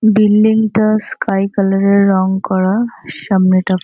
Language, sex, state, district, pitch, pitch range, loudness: Bengali, female, West Bengal, North 24 Parganas, 200 Hz, 190-215 Hz, -13 LUFS